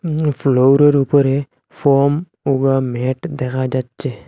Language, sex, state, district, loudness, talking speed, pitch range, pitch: Bengali, male, Assam, Hailakandi, -16 LUFS, 125 wpm, 130-145 Hz, 135 Hz